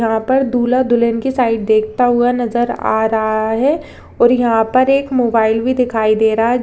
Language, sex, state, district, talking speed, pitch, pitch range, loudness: Hindi, female, Uttar Pradesh, Jyotiba Phule Nagar, 200 wpm, 240 Hz, 220-250 Hz, -14 LUFS